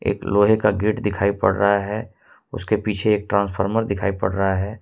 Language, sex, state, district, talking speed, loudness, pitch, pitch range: Hindi, male, Jharkhand, Ranchi, 200 wpm, -20 LUFS, 100 Hz, 100-105 Hz